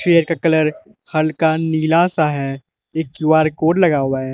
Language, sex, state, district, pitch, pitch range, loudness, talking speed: Hindi, male, Arunachal Pradesh, Lower Dibang Valley, 160 Hz, 155-165 Hz, -17 LUFS, 180 wpm